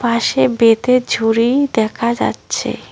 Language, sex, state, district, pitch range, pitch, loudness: Bengali, female, West Bengal, Cooch Behar, 225-240 Hz, 235 Hz, -15 LUFS